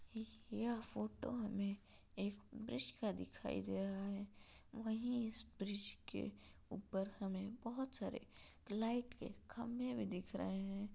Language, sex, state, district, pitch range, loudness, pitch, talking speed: Hindi, female, Uttar Pradesh, Ghazipur, 195-230 Hz, -46 LUFS, 210 Hz, 135 wpm